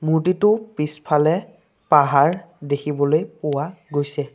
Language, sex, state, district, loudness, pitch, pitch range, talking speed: Assamese, male, Assam, Sonitpur, -20 LUFS, 150 Hz, 145-170 Hz, 85 wpm